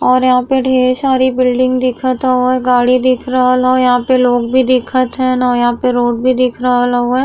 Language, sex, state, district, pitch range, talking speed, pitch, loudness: Bhojpuri, female, Uttar Pradesh, Gorakhpur, 250-255 Hz, 215 wpm, 255 Hz, -12 LUFS